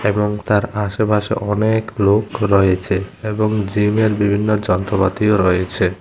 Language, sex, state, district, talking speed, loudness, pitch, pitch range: Bengali, male, Tripura, West Tripura, 110 wpm, -17 LUFS, 105 Hz, 95-105 Hz